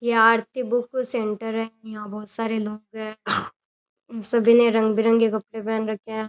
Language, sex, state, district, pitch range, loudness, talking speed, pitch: Rajasthani, female, Rajasthan, Churu, 220-230 Hz, -22 LUFS, 170 wpm, 225 Hz